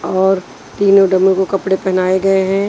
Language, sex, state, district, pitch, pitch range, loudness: Hindi, female, Punjab, Pathankot, 190 Hz, 190-195 Hz, -14 LUFS